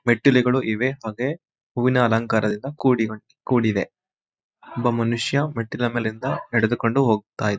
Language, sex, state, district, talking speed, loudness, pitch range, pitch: Kannada, male, Karnataka, Mysore, 105 wpm, -22 LUFS, 110-130 Hz, 120 Hz